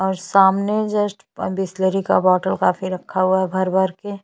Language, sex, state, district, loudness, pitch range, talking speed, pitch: Hindi, female, Chhattisgarh, Bastar, -19 LUFS, 185-195 Hz, 170 wpm, 190 Hz